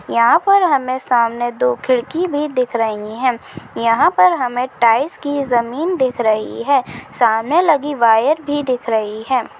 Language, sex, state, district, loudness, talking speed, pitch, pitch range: Chhattisgarhi, female, Chhattisgarh, Kabirdham, -16 LUFS, 165 wpm, 250 Hz, 230-285 Hz